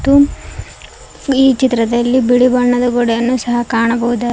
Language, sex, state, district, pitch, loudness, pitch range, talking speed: Kannada, female, Karnataka, Koppal, 245 Hz, -13 LUFS, 240-255 Hz, 110 wpm